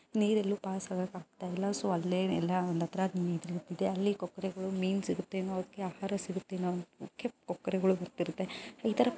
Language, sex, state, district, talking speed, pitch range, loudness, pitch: Kannada, female, Karnataka, Mysore, 150 wpm, 180-195 Hz, -35 LUFS, 190 Hz